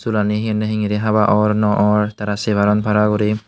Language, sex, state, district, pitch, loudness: Chakma, male, Tripura, Unakoti, 105 Hz, -17 LUFS